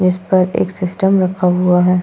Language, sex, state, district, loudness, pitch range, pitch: Hindi, female, Goa, North and South Goa, -15 LUFS, 180-185 Hz, 180 Hz